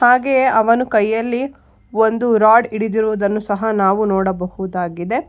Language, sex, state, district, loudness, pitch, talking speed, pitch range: Kannada, female, Karnataka, Bangalore, -16 LUFS, 220 Hz, 100 wpm, 200-240 Hz